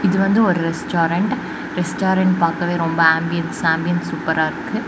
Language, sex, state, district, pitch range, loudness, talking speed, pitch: Tamil, female, Tamil Nadu, Kanyakumari, 165-190 Hz, -18 LUFS, 135 wpm, 175 Hz